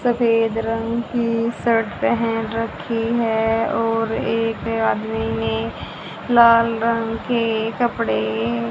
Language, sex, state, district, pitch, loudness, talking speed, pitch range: Hindi, female, Haryana, Charkhi Dadri, 225 Hz, -20 LUFS, 105 wpm, 210-230 Hz